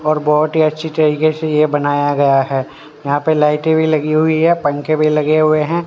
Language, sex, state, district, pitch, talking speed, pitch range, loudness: Hindi, male, Haryana, Rohtak, 155 Hz, 225 wpm, 145-155 Hz, -14 LUFS